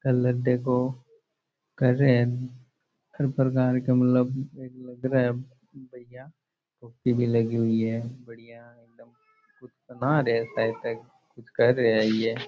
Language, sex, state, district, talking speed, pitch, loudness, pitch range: Rajasthani, male, Rajasthan, Churu, 155 wpm, 125 Hz, -25 LUFS, 115-130 Hz